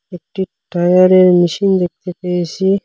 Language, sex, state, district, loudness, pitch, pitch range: Bengali, male, Assam, Hailakandi, -14 LUFS, 180 Hz, 175-190 Hz